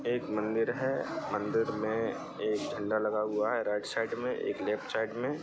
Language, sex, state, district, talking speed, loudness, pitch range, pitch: Hindi, male, Bihar, Saran, 200 wpm, -32 LUFS, 105-120 Hz, 110 Hz